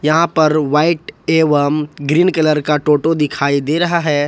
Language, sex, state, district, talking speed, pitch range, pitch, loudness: Hindi, male, Jharkhand, Ranchi, 170 wpm, 150-160 Hz, 155 Hz, -15 LUFS